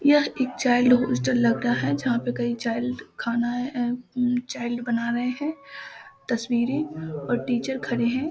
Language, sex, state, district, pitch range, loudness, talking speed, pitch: Maithili, female, Bihar, Samastipur, 235-255 Hz, -25 LUFS, 160 wpm, 245 Hz